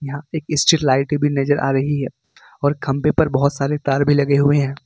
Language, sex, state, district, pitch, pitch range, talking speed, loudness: Hindi, male, Jharkhand, Ranchi, 145 Hz, 140-145 Hz, 235 wpm, -18 LUFS